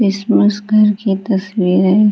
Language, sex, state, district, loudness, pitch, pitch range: Hindi, female, Bihar, Gaya, -14 LUFS, 205 Hz, 195-210 Hz